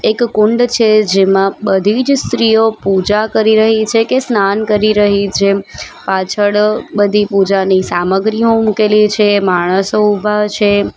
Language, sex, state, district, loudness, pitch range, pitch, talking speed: Gujarati, female, Gujarat, Valsad, -12 LUFS, 195-220 Hz, 210 Hz, 135 wpm